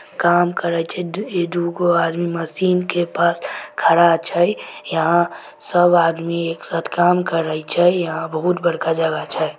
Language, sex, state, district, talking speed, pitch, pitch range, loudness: Maithili, female, Bihar, Samastipur, 155 wpm, 170 Hz, 165-175 Hz, -18 LUFS